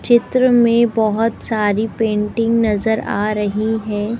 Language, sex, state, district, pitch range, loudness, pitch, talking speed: Hindi, female, Madhya Pradesh, Dhar, 210-230 Hz, -17 LUFS, 220 Hz, 130 wpm